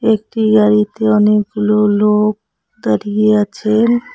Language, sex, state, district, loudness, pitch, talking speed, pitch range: Bengali, female, West Bengal, Cooch Behar, -14 LUFS, 210 Hz, 85 wpm, 210-220 Hz